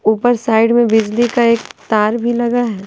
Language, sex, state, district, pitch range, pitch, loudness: Hindi, female, Bihar, Patna, 220-240 Hz, 235 Hz, -14 LUFS